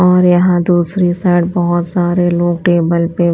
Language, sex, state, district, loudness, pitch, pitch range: Hindi, female, Chhattisgarh, Raipur, -13 LUFS, 175 Hz, 175-180 Hz